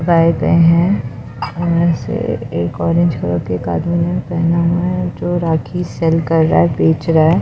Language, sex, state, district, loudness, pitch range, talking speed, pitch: Hindi, female, Maharashtra, Mumbai Suburban, -15 LUFS, 155-170 Hz, 160 wpm, 165 Hz